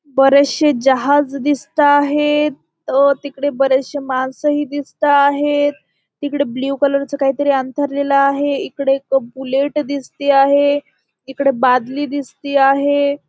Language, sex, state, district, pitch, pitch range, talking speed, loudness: Marathi, female, Maharashtra, Dhule, 280 Hz, 270-290 Hz, 110 wpm, -16 LUFS